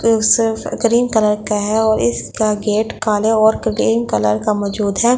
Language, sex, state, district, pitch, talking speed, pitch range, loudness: Hindi, female, Delhi, New Delhi, 210 Hz, 160 wpm, 195-220 Hz, -16 LUFS